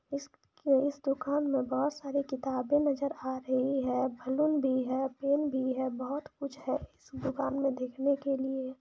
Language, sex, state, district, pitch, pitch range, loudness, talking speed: Hindi, female, Jharkhand, Jamtara, 270 Hz, 260-280 Hz, -32 LUFS, 175 wpm